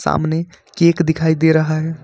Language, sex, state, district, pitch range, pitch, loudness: Hindi, male, Jharkhand, Ranchi, 160-165 Hz, 160 Hz, -16 LUFS